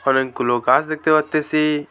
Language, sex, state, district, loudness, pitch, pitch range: Bengali, male, West Bengal, Alipurduar, -18 LUFS, 150 Hz, 135-155 Hz